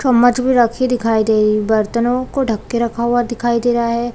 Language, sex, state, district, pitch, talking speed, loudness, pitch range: Hindi, female, Chhattisgarh, Balrampur, 235 Hz, 230 wpm, -16 LUFS, 230-245 Hz